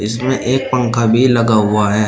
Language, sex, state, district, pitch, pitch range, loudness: Hindi, male, Uttar Pradesh, Shamli, 115 Hz, 105-130 Hz, -14 LUFS